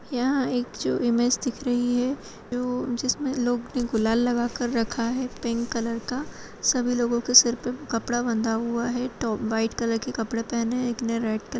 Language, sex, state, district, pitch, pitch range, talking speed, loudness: Hindi, female, Chhattisgarh, Rajnandgaon, 240 Hz, 230-250 Hz, 205 wpm, -25 LUFS